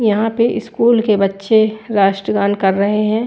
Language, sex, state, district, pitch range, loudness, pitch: Hindi, female, Chandigarh, Chandigarh, 200-220 Hz, -15 LUFS, 210 Hz